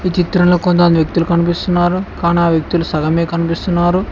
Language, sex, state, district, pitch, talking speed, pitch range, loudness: Telugu, male, Telangana, Mahabubabad, 175 Hz, 130 wpm, 170-180 Hz, -14 LUFS